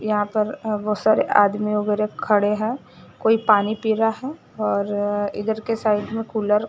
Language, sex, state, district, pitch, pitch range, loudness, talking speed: Hindi, female, Maharashtra, Gondia, 215 Hz, 210-220 Hz, -21 LUFS, 190 wpm